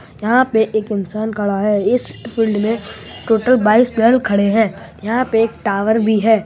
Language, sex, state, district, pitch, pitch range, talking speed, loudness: Hindi, female, Bihar, Araria, 220 Hz, 210-230 Hz, 185 wpm, -16 LUFS